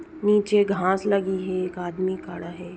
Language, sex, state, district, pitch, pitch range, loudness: Hindi, female, Bihar, Saran, 185 Hz, 180-200 Hz, -24 LUFS